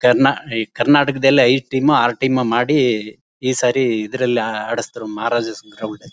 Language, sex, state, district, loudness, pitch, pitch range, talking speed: Kannada, male, Karnataka, Mysore, -17 LUFS, 125 Hz, 110-135 Hz, 165 wpm